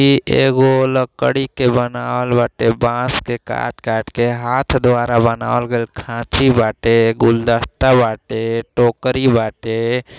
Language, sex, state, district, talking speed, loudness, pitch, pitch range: Bhojpuri, male, Uttar Pradesh, Gorakhpur, 125 wpm, -16 LUFS, 120 Hz, 115-130 Hz